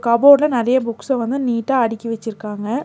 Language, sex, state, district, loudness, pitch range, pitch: Tamil, female, Tamil Nadu, Nilgiris, -17 LUFS, 225-265 Hz, 235 Hz